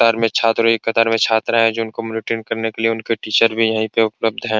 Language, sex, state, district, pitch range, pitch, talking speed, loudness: Hindi, male, Bihar, Supaul, 110-115 Hz, 115 Hz, 275 wpm, -17 LUFS